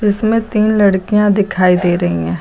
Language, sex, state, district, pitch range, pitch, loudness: Hindi, female, Uttar Pradesh, Lucknow, 180-210 Hz, 205 Hz, -13 LUFS